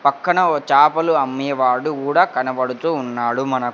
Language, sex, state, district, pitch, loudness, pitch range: Telugu, male, Andhra Pradesh, Sri Satya Sai, 135 Hz, -18 LUFS, 130-155 Hz